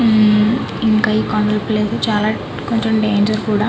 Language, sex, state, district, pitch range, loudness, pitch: Telugu, female, Andhra Pradesh, Krishna, 210-220 Hz, -16 LUFS, 215 Hz